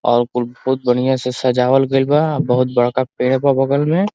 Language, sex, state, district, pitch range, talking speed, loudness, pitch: Bhojpuri, male, Uttar Pradesh, Ghazipur, 125-135 Hz, 200 wpm, -16 LUFS, 130 Hz